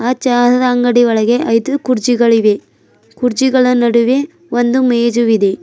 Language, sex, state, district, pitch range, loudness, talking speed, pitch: Kannada, female, Karnataka, Bidar, 230-250 Hz, -13 LUFS, 105 wpm, 240 Hz